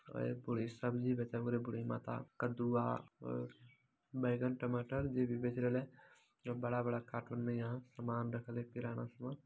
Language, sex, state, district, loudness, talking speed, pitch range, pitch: Maithili, male, Bihar, Madhepura, -41 LUFS, 160 wpm, 115-125 Hz, 120 Hz